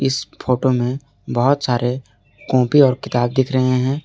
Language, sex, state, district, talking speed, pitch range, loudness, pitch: Hindi, male, Jharkhand, Garhwa, 165 wpm, 120-135 Hz, -18 LUFS, 130 Hz